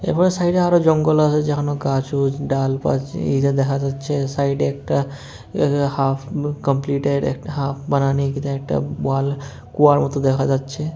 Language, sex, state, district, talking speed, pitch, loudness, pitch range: Bengali, male, Tripura, West Tripura, 130 wpm, 140 Hz, -20 LUFS, 135-145 Hz